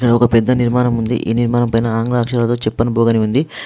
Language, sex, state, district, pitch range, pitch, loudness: Telugu, male, Telangana, Adilabad, 115-120 Hz, 120 Hz, -15 LUFS